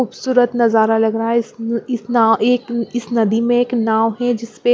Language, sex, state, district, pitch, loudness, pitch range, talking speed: Hindi, female, Punjab, Pathankot, 235 Hz, -17 LUFS, 225-245 Hz, 255 wpm